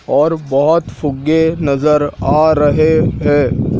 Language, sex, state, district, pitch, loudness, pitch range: Hindi, male, Madhya Pradesh, Dhar, 150 Hz, -13 LUFS, 140-155 Hz